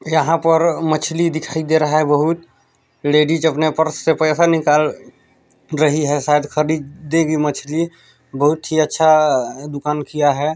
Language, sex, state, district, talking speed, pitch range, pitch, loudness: Hindi, male, Chhattisgarh, Balrampur, 150 wpm, 150-160 Hz, 155 Hz, -17 LUFS